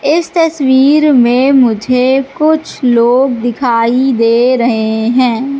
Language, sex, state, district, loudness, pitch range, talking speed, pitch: Hindi, female, Madhya Pradesh, Katni, -10 LUFS, 235-275 Hz, 105 wpm, 255 Hz